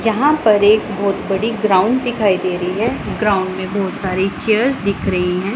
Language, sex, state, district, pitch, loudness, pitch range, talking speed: Hindi, female, Punjab, Pathankot, 205 Hz, -16 LUFS, 190-225 Hz, 195 wpm